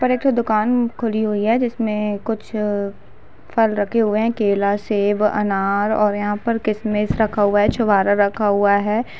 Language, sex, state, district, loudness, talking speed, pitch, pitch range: Hindi, female, Bihar, Lakhisarai, -19 LUFS, 175 wpm, 210 Hz, 205-225 Hz